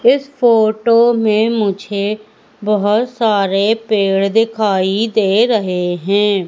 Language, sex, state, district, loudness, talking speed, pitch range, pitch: Hindi, female, Madhya Pradesh, Umaria, -14 LUFS, 100 wpm, 200-225 Hz, 215 Hz